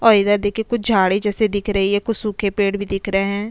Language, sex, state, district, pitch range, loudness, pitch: Hindi, female, Goa, North and South Goa, 200-215 Hz, -19 LUFS, 205 Hz